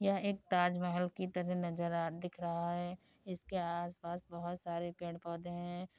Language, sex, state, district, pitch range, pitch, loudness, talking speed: Hindi, female, Uttar Pradesh, Deoria, 170-180 Hz, 175 Hz, -39 LUFS, 200 wpm